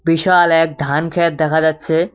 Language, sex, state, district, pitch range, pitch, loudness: Bengali, male, West Bengal, Cooch Behar, 160-170 Hz, 165 Hz, -15 LUFS